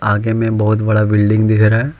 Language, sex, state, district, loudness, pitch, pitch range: Hindi, male, Jharkhand, Ranchi, -14 LUFS, 110 Hz, 105-110 Hz